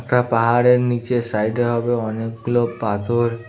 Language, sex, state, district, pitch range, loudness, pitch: Bengali, male, West Bengal, Jhargram, 115-120 Hz, -19 LUFS, 120 Hz